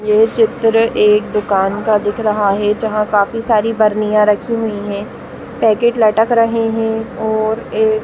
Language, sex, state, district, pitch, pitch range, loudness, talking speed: Hindi, female, Chhattisgarh, Raigarh, 215 Hz, 210-225 Hz, -14 LUFS, 165 wpm